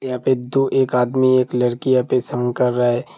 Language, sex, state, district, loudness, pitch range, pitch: Hindi, male, Uttar Pradesh, Hamirpur, -18 LUFS, 125-130 Hz, 125 Hz